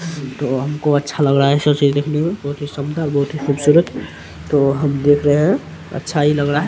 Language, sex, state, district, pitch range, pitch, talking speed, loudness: Hindi, male, Bihar, Araria, 140-150 Hz, 145 Hz, 240 wpm, -17 LUFS